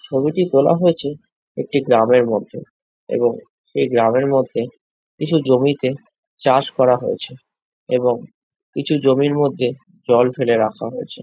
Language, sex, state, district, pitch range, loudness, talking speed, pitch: Bengali, male, West Bengal, Jhargram, 125-150 Hz, -18 LUFS, 130 wpm, 135 Hz